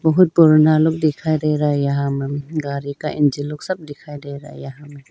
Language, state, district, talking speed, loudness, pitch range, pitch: Hindi, Arunachal Pradesh, Lower Dibang Valley, 235 wpm, -18 LUFS, 140-155 Hz, 150 Hz